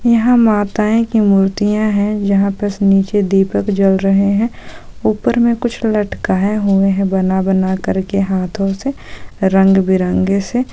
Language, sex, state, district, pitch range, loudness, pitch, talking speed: Hindi, female, Jharkhand, Sahebganj, 195-215 Hz, -14 LUFS, 200 Hz, 150 wpm